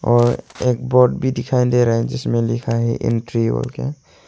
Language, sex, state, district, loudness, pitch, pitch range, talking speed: Hindi, male, Arunachal Pradesh, Longding, -18 LUFS, 120 Hz, 115-125 Hz, 195 wpm